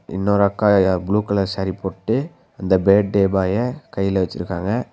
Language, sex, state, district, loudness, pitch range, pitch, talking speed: Tamil, male, Tamil Nadu, Nilgiris, -19 LUFS, 95-105 Hz, 100 Hz, 145 wpm